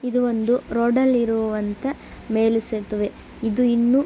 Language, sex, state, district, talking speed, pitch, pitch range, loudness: Kannada, female, Karnataka, Belgaum, 120 wpm, 235 Hz, 220-250 Hz, -22 LUFS